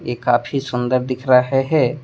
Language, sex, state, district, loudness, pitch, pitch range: Hindi, male, Tripura, West Tripura, -18 LUFS, 130 Hz, 125-135 Hz